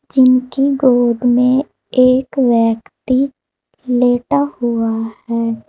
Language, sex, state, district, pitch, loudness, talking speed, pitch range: Hindi, female, Uttar Pradesh, Saharanpur, 250 Hz, -15 LUFS, 85 wpm, 235-260 Hz